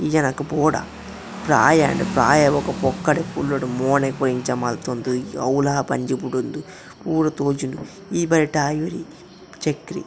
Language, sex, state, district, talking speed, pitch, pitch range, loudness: Tulu, male, Karnataka, Dakshina Kannada, 135 wpm, 140 Hz, 130-155 Hz, -21 LUFS